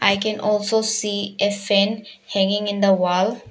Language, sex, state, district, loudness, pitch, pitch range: English, female, Arunachal Pradesh, Papum Pare, -20 LUFS, 205 Hz, 200-210 Hz